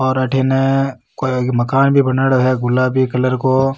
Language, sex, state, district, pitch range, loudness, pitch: Rajasthani, male, Rajasthan, Nagaur, 130-135 Hz, -15 LUFS, 130 Hz